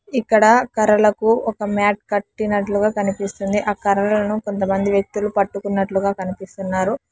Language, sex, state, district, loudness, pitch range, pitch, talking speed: Telugu, male, Telangana, Hyderabad, -19 LUFS, 200-215 Hz, 205 Hz, 100 wpm